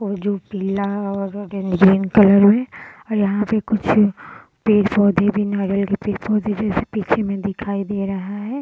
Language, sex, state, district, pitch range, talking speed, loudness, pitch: Hindi, female, Bihar, Gaya, 195-210 Hz, 160 wpm, -19 LUFS, 205 Hz